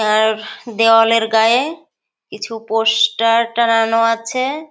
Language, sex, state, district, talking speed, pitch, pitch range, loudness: Bengali, female, West Bengal, Kolkata, 90 wpm, 225 Hz, 225-235 Hz, -15 LUFS